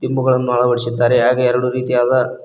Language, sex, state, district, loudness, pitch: Kannada, male, Karnataka, Koppal, -15 LUFS, 125 Hz